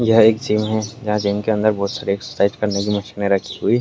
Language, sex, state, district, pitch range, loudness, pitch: Hindi, male, Uttar Pradesh, Varanasi, 100-110 Hz, -19 LUFS, 105 Hz